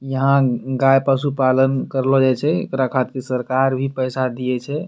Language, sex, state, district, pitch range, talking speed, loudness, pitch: Angika, male, Bihar, Bhagalpur, 130-135 Hz, 160 wpm, -18 LUFS, 130 Hz